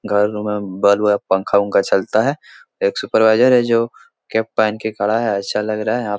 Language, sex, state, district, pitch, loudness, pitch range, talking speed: Hindi, male, Bihar, Jahanabad, 105 Hz, -17 LUFS, 105-115 Hz, 215 wpm